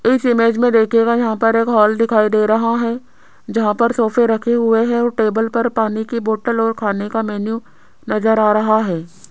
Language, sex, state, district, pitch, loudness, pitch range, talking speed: Hindi, female, Rajasthan, Jaipur, 225 Hz, -16 LUFS, 215-235 Hz, 205 wpm